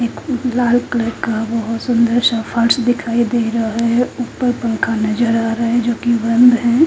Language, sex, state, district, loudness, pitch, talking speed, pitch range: Hindi, female, Haryana, Charkhi Dadri, -16 LUFS, 235 Hz, 190 wpm, 230-245 Hz